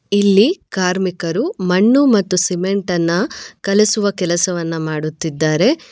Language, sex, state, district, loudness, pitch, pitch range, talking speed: Kannada, female, Karnataka, Bangalore, -16 LUFS, 185 Hz, 170-205 Hz, 90 wpm